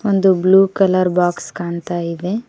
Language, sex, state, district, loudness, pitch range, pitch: Kannada, female, Karnataka, Koppal, -16 LUFS, 175-195 Hz, 185 Hz